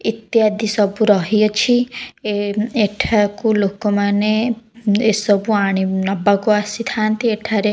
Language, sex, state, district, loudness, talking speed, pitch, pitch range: Odia, female, Odisha, Khordha, -17 LUFS, 115 wpm, 215 Hz, 205-225 Hz